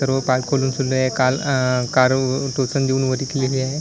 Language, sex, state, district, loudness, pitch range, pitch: Marathi, male, Maharashtra, Washim, -19 LUFS, 130-135 Hz, 130 Hz